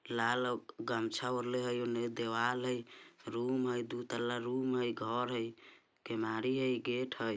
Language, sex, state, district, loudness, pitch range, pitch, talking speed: Bajjika, male, Bihar, Vaishali, -36 LUFS, 115-125 Hz, 120 Hz, 165 wpm